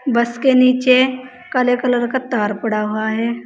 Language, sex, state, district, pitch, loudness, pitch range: Hindi, female, Uttar Pradesh, Saharanpur, 250 Hz, -16 LUFS, 230-255 Hz